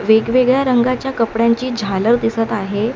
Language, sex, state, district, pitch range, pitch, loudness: Marathi, female, Maharashtra, Mumbai Suburban, 220-250 Hz, 230 Hz, -16 LUFS